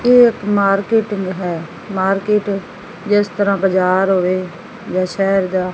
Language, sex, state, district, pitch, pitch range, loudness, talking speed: Punjabi, female, Punjab, Fazilka, 195 Hz, 185-205 Hz, -16 LUFS, 115 wpm